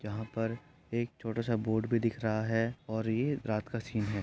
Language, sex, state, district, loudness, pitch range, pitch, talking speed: Hindi, male, Uttar Pradesh, Etah, -34 LUFS, 110-120 Hz, 115 Hz, 225 wpm